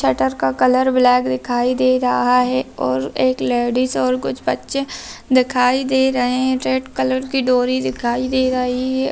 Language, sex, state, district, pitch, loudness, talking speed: Hindi, female, Bihar, Begusarai, 250 Hz, -18 LUFS, 170 wpm